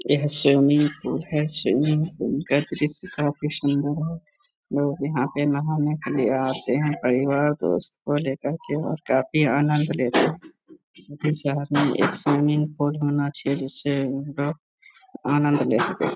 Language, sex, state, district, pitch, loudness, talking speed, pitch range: Hindi, male, Bihar, Araria, 145 Hz, -23 LUFS, 155 wpm, 140-150 Hz